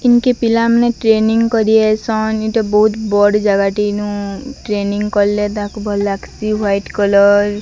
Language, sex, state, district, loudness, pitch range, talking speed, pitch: Odia, female, Odisha, Sambalpur, -14 LUFS, 205-220 Hz, 150 wpm, 210 Hz